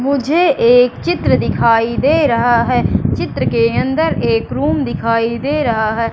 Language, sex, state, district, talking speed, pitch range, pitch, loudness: Hindi, female, Madhya Pradesh, Katni, 155 wpm, 230-280 Hz, 235 Hz, -14 LUFS